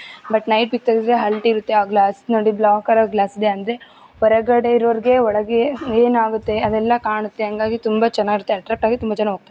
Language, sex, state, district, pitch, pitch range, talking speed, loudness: Kannada, female, Karnataka, Gulbarga, 220 Hz, 215-235 Hz, 165 wpm, -18 LUFS